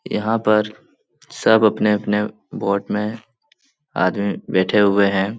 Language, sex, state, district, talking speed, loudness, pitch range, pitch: Hindi, male, Bihar, Lakhisarai, 120 wpm, -19 LUFS, 100-110 Hz, 105 Hz